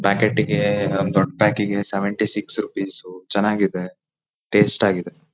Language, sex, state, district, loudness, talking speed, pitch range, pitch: Kannada, male, Karnataka, Shimoga, -20 LUFS, 100 wpm, 95-105 Hz, 100 Hz